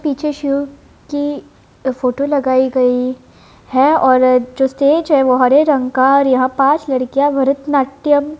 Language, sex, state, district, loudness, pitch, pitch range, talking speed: Hindi, female, Bihar, Vaishali, -14 LUFS, 275 Hz, 260-290 Hz, 150 wpm